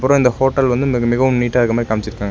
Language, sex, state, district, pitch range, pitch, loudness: Tamil, male, Tamil Nadu, Nilgiris, 115-130 Hz, 125 Hz, -16 LUFS